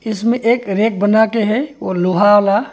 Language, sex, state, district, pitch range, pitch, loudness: Hindi, male, Arunachal Pradesh, Longding, 205-230 Hz, 220 Hz, -15 LUFS